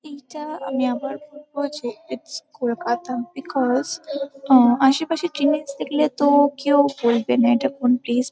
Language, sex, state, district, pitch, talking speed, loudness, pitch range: Bengali, female, West Bengal, Kolkata, 275 Hz, 150 wpm, -20 LUFS, 250-290 Hz